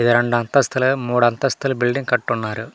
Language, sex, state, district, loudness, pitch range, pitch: Telugu, male, Andhra Pradesh, Manyam, -19 LUFS, 120-135 Hz, 120 Hz